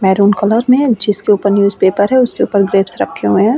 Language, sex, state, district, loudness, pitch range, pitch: Hindi, female, Uttar Pradesh, Varanasi, -12 LUFS, 195-225 Hz, 200 Hz